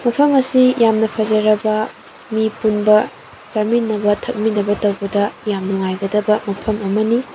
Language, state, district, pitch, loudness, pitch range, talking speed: Manipuri, Manipur, Imphal West, 215 Hz, -17 LUFS, 205-225 Hz, 105 wpm